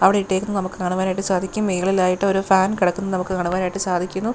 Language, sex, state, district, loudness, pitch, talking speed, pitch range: Malayalam, female, Kerala, Thiruvananthapuram, -20 LUFS, 190 Hz, 165 wpm, 185-195 Hz